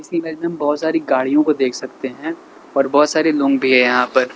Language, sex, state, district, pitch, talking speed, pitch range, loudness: Hindi, male, Uttar Pradesh, Lalitpur, 145 Hz, 260 wpm, 130-160 Hz, -17 LUFS